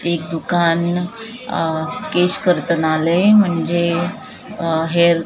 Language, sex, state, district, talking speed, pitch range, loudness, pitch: Marathi, female, Maharashtra, Mumbai Suburban, 80 wpm, 165-180 Hz, -17 LUFS, 170 Hz